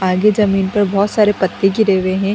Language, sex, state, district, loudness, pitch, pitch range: Hindi, female, Bihar, Kishanganj, -15 LUFS, 195 Hz, 190-210 Hz